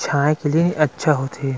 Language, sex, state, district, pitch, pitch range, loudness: Chhattisgarhi, male, Chhattisgarh, Rajnandgaon, 150 Hz, 140-155 Hz, -19 LUFS